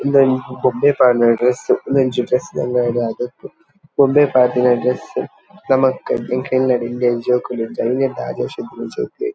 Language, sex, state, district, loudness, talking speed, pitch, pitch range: Tulu, male, Karnataka, Dakshina Kannada, -17 LUFS, 150 wpm, 125 Hz, 125-135 Hz